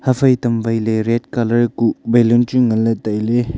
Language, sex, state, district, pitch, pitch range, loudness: Wancho, male, Arunachal Pradesh, Longding, 115 Hz, 115-120 Hz, -16 LUFS